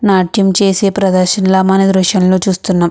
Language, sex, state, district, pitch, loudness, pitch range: Telugu, female, Andhra Pradesh, Krishna, 190 Hz, -11 LUFS, 185-195 Hz